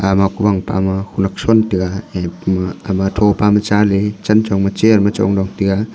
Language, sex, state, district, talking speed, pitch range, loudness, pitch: Wancho, male, Arunachal Pradesh, Longding, 200 wpm, 95-105 Hz, -15 LUFS, 100 Hz